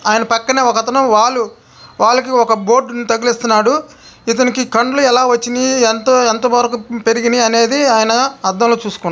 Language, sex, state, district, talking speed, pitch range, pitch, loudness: Telugu, male, Andhra Pradesh, Krishna, 130 wpm, 225-255 Hz, 240 Hz, -13 LUFS